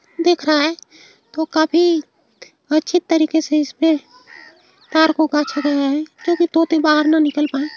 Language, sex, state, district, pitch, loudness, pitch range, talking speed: Bhojpuri, female, Uttar Pradesh, Ghazipur, 315 Hz, -17 LUFS, 300-335 Hz, 155 wpm